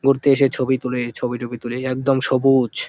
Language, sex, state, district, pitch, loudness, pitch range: Bengali, male, West Bengal, Jalpaiguri, 130 Hz, -19 LUFS, 125-135 Hz